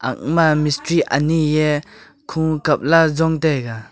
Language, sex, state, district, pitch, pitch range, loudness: Wancho, male, Arunachal Pradesh, Longding, 155 Hz, 145-160 Hz, -17 LUFS